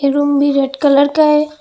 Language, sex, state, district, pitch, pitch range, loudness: Hindi, female, Assam, Hailakandi, 285 Hz, 280-300 Hz, -13 LUFS